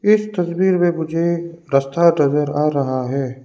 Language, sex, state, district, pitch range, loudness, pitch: Hindi, male, Arunachal Pradesh, Lower Dibang Valley, 140-175 Hz, -18 LUFS, 165 Hz